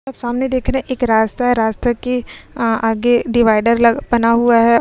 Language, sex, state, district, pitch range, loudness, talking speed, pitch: Hindi, female, Uttar Pradesh, Muzaffarnagar, 230-245 Hz, -15 LUFS, 210 wpm, 235 Hz